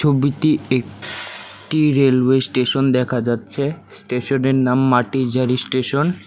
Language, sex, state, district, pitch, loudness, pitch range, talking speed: Bengali, male, West Bengal, Alipurduar, 130 Hz, -18 LUFS, 125-140 Hz, 105 wpm